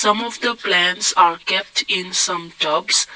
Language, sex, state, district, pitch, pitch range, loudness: English, male, Assam, Kamrup Metropolitan, 190 Hz, 180-210 Hz, -17 LUFS